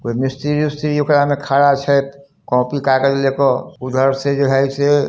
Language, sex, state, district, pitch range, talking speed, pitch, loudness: Hindi, male, Bihar, Samastipur, 135-145 Hz, 190 wpm, 140 Hz, -16 LUFS